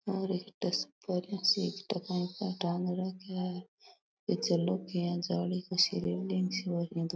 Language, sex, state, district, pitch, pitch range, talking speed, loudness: Rajasthani, female, Rajasthan, Nagaur, 185 Hz, 175-190 Hz, 65 wpm, -33 LUFS